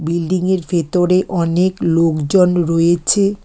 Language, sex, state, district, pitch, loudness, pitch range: Bengali, female, West Bengal, Alipurduar, 175 Hz, -15 LUFS, 165-185 Hz